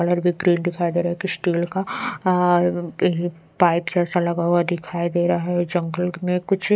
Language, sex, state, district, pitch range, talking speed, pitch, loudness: Hindi, female, Odisha, Sambalpur, 175-180 Hz, 195 wpm, 175 Hz, -21 LUFS